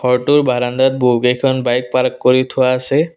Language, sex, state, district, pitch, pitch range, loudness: Assamese, male, Assam, Kamrup Metropolitan, 130 Hz, 125-130 Hz, -14 LUFS